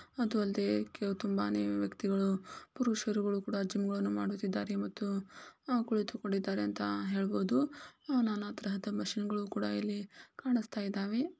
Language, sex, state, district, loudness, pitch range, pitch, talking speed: Kannada, female, Karnataka, Belgaum, -35 LUFS, 190-220 Hz, 205 Hz, 115 wpm